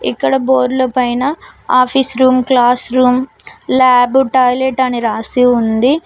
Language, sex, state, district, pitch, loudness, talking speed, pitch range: Telugu, female, Telangana, Mahabubabad, 255 Hz, -12 LUFS, 120 wpm, 250-265 Hz